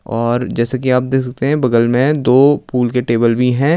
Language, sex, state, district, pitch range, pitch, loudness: Hindi, male, Uttar Pradesh, Lucknow, 120-135 Hz, 125 Hz, -14 LUFS